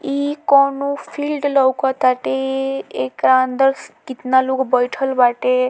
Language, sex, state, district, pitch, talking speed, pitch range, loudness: Bhojpuri, female, Bihar, Muzaffarpur, 260 Hz, 115 wpm, 250-275 Hz, -17 LUFS